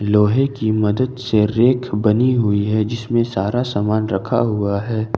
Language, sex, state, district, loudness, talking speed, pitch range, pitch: Hindi, male, Jharkhand, Ranchi, -18 LUFS, 175 wpm, 105-120 Hz, 110 Hz